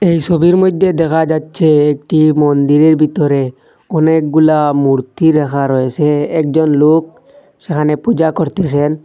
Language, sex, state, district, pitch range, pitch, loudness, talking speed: Bengali, male, Assam, Hailakandi, 145-165 Hz, 155 Hz, -12 LUFS, 115 wpm